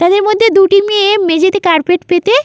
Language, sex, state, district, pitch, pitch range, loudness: Bengali, female, West Bengal, Malda, 390 Hz, 355-415 Hz, -10 LUFS